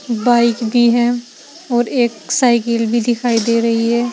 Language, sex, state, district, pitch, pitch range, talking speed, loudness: Hindi, female, Uttar Pradesh, Saharanpur, 240 Hz, 230-245 Hz, 160 wpm, -15 LUFS